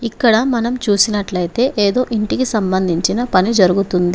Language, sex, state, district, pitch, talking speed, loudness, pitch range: Telugu, female, Telangana, Komaram Bheem, 210 Hz, 115 wpm, -15 LUFS, 185-235 Hz